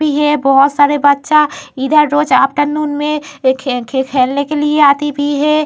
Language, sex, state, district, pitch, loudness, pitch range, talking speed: Hindi, female, Uttar Pradesh, Varanasi, 290 Hz, -13 LUFS, 275-295 Hz, 170 wpm